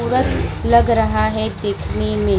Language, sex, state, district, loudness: Hindi, female, Bihar, Vaishali, -18 LUFS